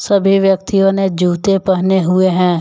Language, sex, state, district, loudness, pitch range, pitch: Hindi, male, Jharkhand, Deoghar, -13 LUFS, 180-195 Hz, 190 Hz